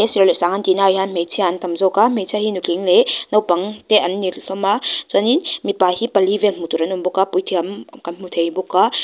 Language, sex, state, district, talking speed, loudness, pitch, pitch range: Mizo, female, Mizoram, Aizawl, 260 wpm, -17 LUFS, 190 Hz, 180-210 Hz